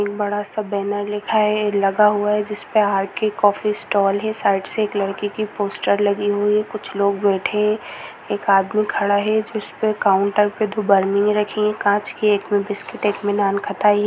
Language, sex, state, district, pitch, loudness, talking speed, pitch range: Hindi, female, Chhattisgarh, Korba, 205 Hz, -19 LUFS, 215 wpm, 200-210 Hz